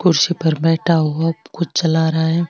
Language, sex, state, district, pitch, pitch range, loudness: Marwari, female, Rajasthan, Nagaur, 165 Hz, 160-170 Hz, -17 LUFS